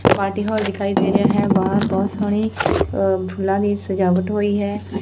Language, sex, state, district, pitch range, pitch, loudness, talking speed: Punjabi, male, Punjab, Fazilka, 195-205 Hz, 200 Hz, -19 LUFS, 165 wpm